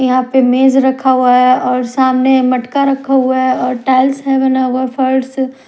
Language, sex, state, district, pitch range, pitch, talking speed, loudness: Hindi, female, Odisha, Nuapada, 255-265 Hz, 260 Hz, 190 wpm, -12 LUFS